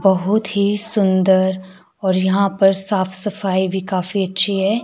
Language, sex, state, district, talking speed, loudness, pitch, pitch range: Hindi, male, Himachal Pradesh, Shimla, 150 wpm, -17 LUFS, 195 Hz, 190-200 Hz